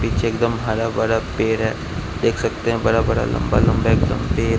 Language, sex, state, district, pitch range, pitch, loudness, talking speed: Hindi, male, Bihar, West Champaran, 110-115 Hz, 115 Hz, -20 LUFS, 185 wpm